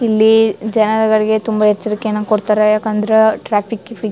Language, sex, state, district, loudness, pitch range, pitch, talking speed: Kannada, female, Karnataka, Chamarajanagar, -14 LUFS, 215-220 Hz, 215 Hz, 130 wpm